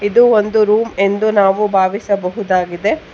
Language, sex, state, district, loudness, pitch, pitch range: Kannada, female, Karnataka, Bangalore, -14 LUFS, 205 Hz, 195-215 Hz